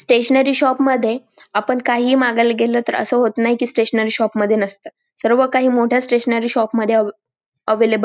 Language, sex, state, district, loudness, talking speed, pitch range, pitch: Marathi, female, Maharashtra, Dhule, -17 LUFS, 185 wpm, 225-255 Hz, 235 Hz